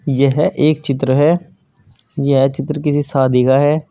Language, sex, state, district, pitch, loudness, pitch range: Hindi, male, Uttar Pradesh, Saharanpur, 140 Hz, -15 LUFS, 135-150 Hz